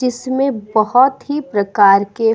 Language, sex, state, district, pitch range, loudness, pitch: Hindi, female, Uttar Pradesh, Budaun, 205-265 Hz, -15 LUFS, 240 Hz